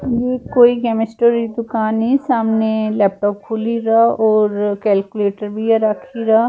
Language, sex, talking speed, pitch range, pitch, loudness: Punjabi, female, 130 wpm, 215-235 Hz, 225 Hz, -16 LUFS